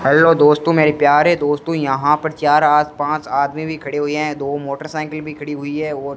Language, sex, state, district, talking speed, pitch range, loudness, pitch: Hindi, male, Rajasthan, Bikaner, 215 wpm, 145-155 Hz, -16 LUFS, 150 Hz